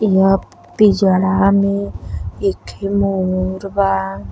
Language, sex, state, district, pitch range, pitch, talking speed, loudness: Bhojpuri, female, Uttar Pradesh, Deoria, 150-200 Hz, 195 Hz, 95 wpm, -16 LUFS